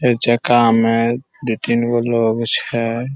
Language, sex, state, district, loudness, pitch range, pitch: Maithili, male, Bihar, Saharsa, -17 LUFS, 115-120 Hz, 120 Hz